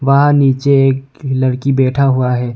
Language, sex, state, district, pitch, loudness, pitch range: Hindi, male, Arunachal Pradesh, Longding, 135 Hz, -13 LUFS, 130-140 Hz